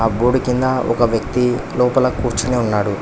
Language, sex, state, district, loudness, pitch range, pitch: Telugu, male, Telangana, Hyderabad, -17 LUFS, 115-125 Hz, 125 Hz